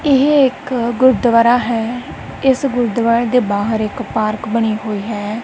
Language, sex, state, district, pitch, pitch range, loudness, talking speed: Punjabi, female, Punjab, Kapurthala, 235 Hz, 220-255 Hz, -15 LUFS, 145 wpm